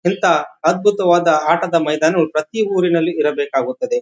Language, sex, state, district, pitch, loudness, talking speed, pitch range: Kannada, male, Karnataka, Bijapur, 170 Hz, -16 LUFS, 105 wpm, 155-195 Hz